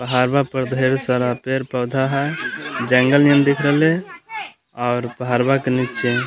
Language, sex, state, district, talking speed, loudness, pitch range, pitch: Magahi, male, Bihar, Gaya, 155 wpm, -18 LUFS, 125-140 Hz, 130 Hz